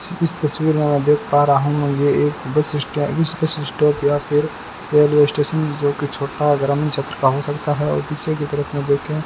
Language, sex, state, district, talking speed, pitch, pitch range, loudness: Hindi, male, Rajasthan, Bikaner, 215 wpm, 145 Hz, 145-150 Hz, -18 LUFS